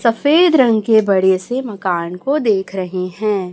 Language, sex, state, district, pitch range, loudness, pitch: Hindi, female, Chhattisgarh, Raipur, 185-245 Hz, -16 LUFS, 210 Hz